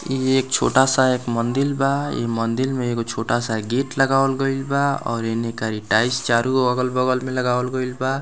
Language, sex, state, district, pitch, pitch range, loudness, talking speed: Bhojpuri, male, Bihar, Muzaffarpur, 130 Hz, 115-135 Hz, -20 LUFS, 190 wpm